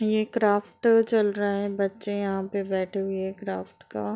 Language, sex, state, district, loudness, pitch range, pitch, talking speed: Hindi, female, Uttar Pradesh, Deoria, -26 LUFS, 190-205 Hz, 200 Hz, 200 wpm